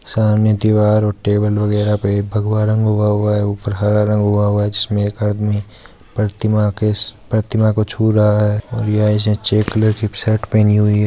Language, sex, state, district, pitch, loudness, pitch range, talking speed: Hindi, male, Rajasthan, Churu, 105 Hz, -16 LUFS, 105-110 Hz, 185 wpm